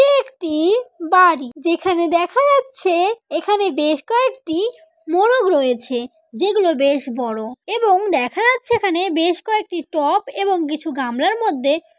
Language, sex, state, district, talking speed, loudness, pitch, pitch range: Bengali, female, West Bengal, Malda, 125 wpm, -18 LUFS, 340 Hz, 285-400 Hz